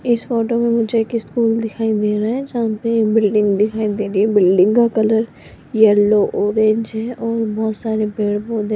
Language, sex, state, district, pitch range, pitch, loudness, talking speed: Hindi, female, Rajasthan, Jaipur, 210-230 Hz, 220 Hz, -17 LUFS, 200 wpm